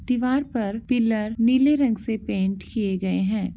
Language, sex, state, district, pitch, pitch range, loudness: Hindi, female, Bihar, Begusarai, 225 Hz, 205-250 Hz, -23 LUFS